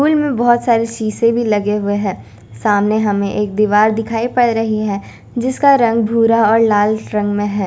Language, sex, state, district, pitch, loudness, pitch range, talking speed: Hindi, female, Chandigarh, Chandigarh, 215 Hz, -15 LUFS, 205-230 Hz, 195 wpm